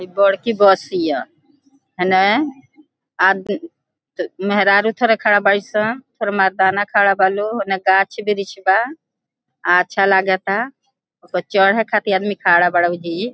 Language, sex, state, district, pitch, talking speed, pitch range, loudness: Bhojpuri, female, Bihar, Gopalganj, 200 Hz, 140 wpm, 190-230 Hz, -16 LUFS